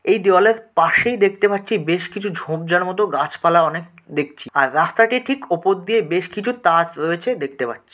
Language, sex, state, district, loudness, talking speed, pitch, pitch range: Bengali, male, West Bengal, Dakshin Dinajpur, -18 LUFS, 175 wpm, 185 Hz, 170-220 Hz